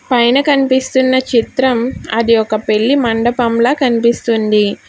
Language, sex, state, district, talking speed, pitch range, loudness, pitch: Telugu, female, Telangana, Hyderabad, 100 wpm, 230-260 Hz, -13 LUFS, 240 Hz